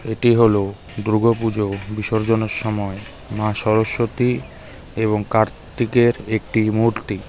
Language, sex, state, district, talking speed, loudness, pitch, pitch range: Bengali, male, West Bengal, Darjeeling, 100 wpm, -19 LUFS, 110 Hz, 105-115 Hz